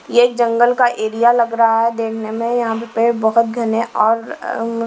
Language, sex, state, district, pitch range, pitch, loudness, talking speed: Hindi, female, Himachal Pradesh, Shimla, 225-235 Hz, 230 Hz, -16 LUFS, 185 wpm